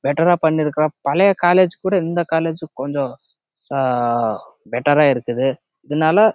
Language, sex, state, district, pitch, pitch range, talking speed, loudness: Tamil, male, Karnataka, Chamarajanagar, 155 Hz, 135-175 Hz, 115 wpm, -18 LUFS